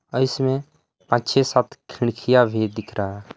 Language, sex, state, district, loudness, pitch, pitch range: Hindi, male, Jharkhand, Palamu, -21 LUFS, 120 Hz, 110-130 Hz